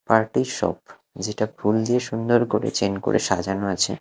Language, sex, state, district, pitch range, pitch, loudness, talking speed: Bengali, male, Odisha, Khordha, 95-115 Hz, 105 Hz, -23 LUFS, 165 wpm